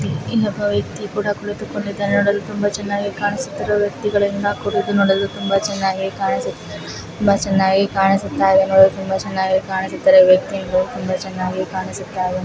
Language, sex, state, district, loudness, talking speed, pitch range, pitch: Kannada, female, Karnataka, Chamarajanagar, -18 LUFS, 125 wpm, 190-205 Hz, 200 Hz